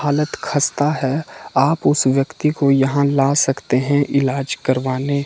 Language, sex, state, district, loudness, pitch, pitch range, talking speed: Hindi, male, Himachal Pradesh, Shimla, -18 LUFS, 140 Hz, 135-145 Hz, 150 wpm